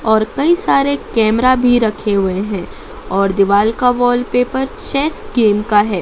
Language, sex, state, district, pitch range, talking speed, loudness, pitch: Hindi, female, Madhya Pradesh, Dhar, 205-255 Hz, 160 wpm, -14 LUFS, 225 Hz